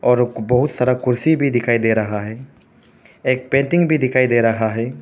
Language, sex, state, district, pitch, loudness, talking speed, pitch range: Hindi, male, Arunachal Pradesh, Papum Pare, 125 Hz, -17 LUFS, 190 wpm, 115-130 Hz